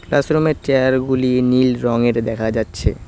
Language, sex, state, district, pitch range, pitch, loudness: Bengali, male, West Bengal, Alipurduar, 115-130 Hz, 125 Hz, -17 LUFS